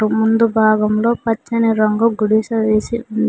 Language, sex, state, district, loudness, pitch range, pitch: Telugu, female, Telangana, Mahabubabad, -16 LUFS, 215-230 Hz, 220 Hz